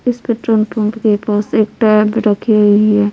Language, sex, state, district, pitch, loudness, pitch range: Hindi, female, Bihar, Patna, 215 Hz, -13 LUFS, 210-220 Hz